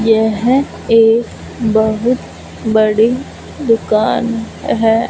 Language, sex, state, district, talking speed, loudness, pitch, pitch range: Hindi, female, Punjab, Fazilka, 70 wpm, -14 LUFS, 225 Hz, 220-235 Hz